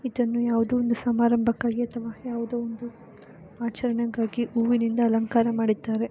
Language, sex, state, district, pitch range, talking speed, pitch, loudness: Kannada, female, Karnataka, Bellary, 230-240 Hz, 120 wpm, 235 Hz, -25 LUFS